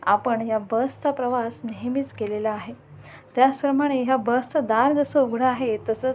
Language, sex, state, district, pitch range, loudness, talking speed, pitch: Marathi, female, Maharashtra, Sindhudurg, 220-265 Hz, -23 LUFS, 175 wpm, 245 Hz